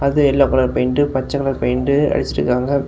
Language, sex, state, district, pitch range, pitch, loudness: Tamil, male, Tamil Nadu, Kanyakumari, 130-140 Hz, 135 Hz, -17 LUFS